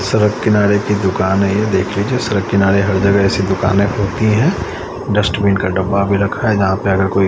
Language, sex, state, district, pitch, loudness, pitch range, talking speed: Hindi, male, Chandigarh, Chandigarh, 100 Hz, -15 LUFS, 95-105 Hz, 215 wpm